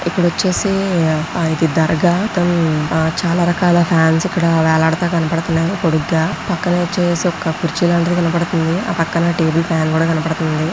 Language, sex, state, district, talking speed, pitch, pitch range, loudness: Telugu, female, Andhra Pradesh, Guntur, 140 wpm, 170 Hz, 160-175 Hz, -16 LUFS